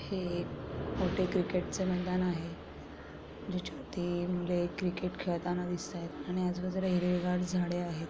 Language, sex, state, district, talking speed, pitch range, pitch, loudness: Marathi, female, Maharashtra, Chandrapur, 140 wpm, 175-180 Hz, 180 Hz, -34 LUFS